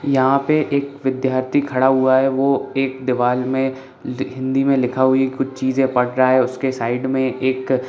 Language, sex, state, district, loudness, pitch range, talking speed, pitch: Hindi, male, Bihar, Saran, -18 LUFS, 130-135 Hz, 200 wpm, 130 Hz